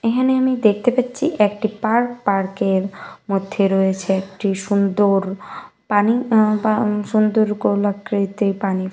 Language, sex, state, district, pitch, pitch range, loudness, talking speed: Bengali, female, West Bengal, Malda, 205 Hz, 195-220 Hz, -19 LUFS, 130 wpm